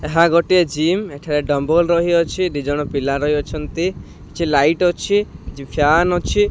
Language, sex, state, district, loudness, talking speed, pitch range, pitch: Odia, male, Odisha, Khordha, -17 LUFS, 140 wpm, 145-175 Hz, 165 Hz